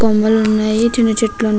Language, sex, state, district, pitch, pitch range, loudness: Telugu, female, Andhra Pradesh, Krishna, 220 Hz, 215-225 Hz, -14 LUFS